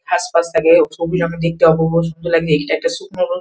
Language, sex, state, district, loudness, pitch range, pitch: Bengali, female, West Bengal, Kolkata, -16 LUFS, 165-265 Hz, 170 Hz